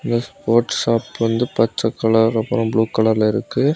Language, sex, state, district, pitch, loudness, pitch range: Tamil, male, Tamil Nadu, Kanyakumari, 115 Hz, -18 LUFS, 110-120 Hz